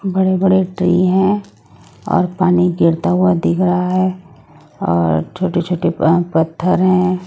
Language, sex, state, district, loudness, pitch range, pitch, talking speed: Hindi, female, Odisha, Sambalpur, -15 LUFS, 160-185 Hz, 180 Hz, 140 wpm